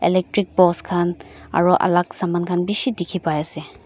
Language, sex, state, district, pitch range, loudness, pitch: Nagamese, female, Nagaland, Dimapur, 175-185 Hz, -20 LUFS, 175 Hz